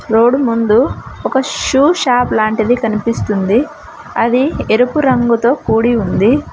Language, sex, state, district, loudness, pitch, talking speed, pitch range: Telugu, female, Telangana, Mahabubabad, -13 LUFS, 240 Hz, 110 wpm, 225-265 Hz